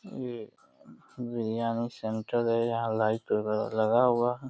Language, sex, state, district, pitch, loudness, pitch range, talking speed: Hindi, male, Uttar Pradesh, Deoria, 115 Hz, -29 LUFS, 110-120 Hz, 135 wpm